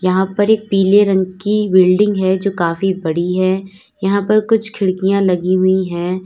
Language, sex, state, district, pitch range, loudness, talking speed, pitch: Hindi, female, Uttar Pradesh, Lalitpur, 185-205 Hz, -15 LUFS, 180 wpm, 190 Hz